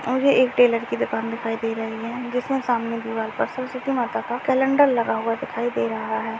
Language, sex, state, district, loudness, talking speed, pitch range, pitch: Hindi, female, Bihar, Madhepura, -23 LUFS, 225 wpm, 225-255 Hz, 240 Hz